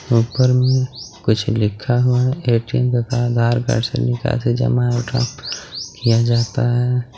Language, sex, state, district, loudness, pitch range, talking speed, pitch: Hindi, male, Jharkhand, Garhwa, -18 LUFS, 120-125 Hz, 135 wpm, 120 Hz